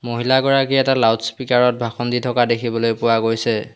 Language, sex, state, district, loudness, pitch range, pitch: Assamese, male, Assam, Hailakandi, -18 LUFS, 115-130 Hz, 120 Hz